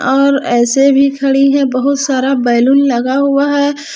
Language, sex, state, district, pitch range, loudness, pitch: Hindi, female, Jharkhand, Palamu, 260-280 Hz, -11 LUFS, 275 Hz